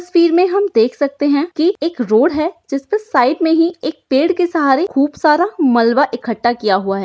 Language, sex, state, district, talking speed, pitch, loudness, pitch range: Hindi, female, Maharashtra, Aurangabad, 215 wpm, 295 Hz, -15 LUFS, 250-340 Hz